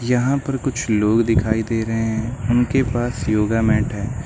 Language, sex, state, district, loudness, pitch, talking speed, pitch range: Hindi, male, Uttar Pradesh, Lucknow, -19 LUFS, 115 Hz, 185 wpm, 110-125 Hz